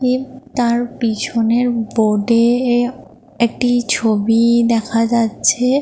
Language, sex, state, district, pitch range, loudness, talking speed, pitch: Bengali, female, Jharkhand, Jamtara, 230-245 Hz, -16 LUFS, 95 wpm, 235 Hz